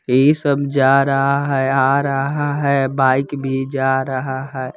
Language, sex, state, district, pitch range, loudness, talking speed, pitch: Hindi, female, Bihar, West Champaran, 135-140 Hz, -17 LUFS, 165 wpm, 135 Hz